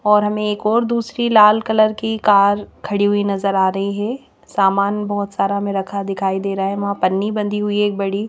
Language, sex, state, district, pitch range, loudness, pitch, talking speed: Hindi, female, Madhya Pradesh, Bhopal, 195-210 Hz, -18 LUFS, 205 Hz, 215 wpm